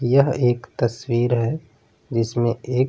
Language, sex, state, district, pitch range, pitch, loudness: Hindi, male, Bihar, Vaishali, 115-130 Hz, 120 Hz, -22 LUFS